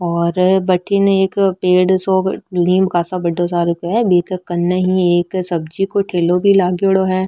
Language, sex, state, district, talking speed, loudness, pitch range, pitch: Marwari, female, Rajasthan, Nagaur, 130 wpm, -15 LUFS, 175-190 Hz, 185 Hz